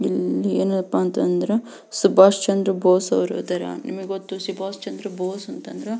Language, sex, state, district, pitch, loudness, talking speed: Kannada, female, Karnataka, Belgaum, 190 Hz, -21 LUFS, 160 wpm